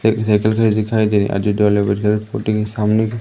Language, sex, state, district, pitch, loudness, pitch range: Hindi, male, Madhya Pradesh, Umaria, 105 Hz, -17 LUFS, 105-110 Hz